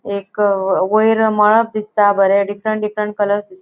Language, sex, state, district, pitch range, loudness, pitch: Konkani, female, Goa, North and South Goa, 200-215 Hz, -15 LUFS, 210 Hz